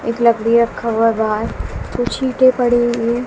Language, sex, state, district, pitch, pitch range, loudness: Hindi, female, Bihar, West Champaran, 235 Hz, 230-240 Hz, -16 LUFS